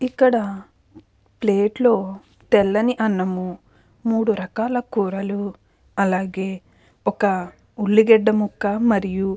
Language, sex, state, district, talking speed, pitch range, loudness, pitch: Telugu, female, Andhra Pradesh, Krishna, 85 wpm, 190-225 Hz, -20 LUFS, 205 Hz